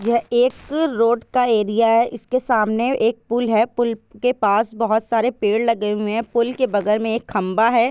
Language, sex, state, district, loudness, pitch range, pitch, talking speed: Hindi, female, Bihar, Jahanabad, -19 LUFS, 220-240 Hz, 230 Hz, 210 wpm